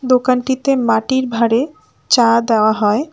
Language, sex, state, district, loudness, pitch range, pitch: Bengali, female, West Bengal, Alipurduar, -15 LUFS, 230-260 Hz, 250 Hz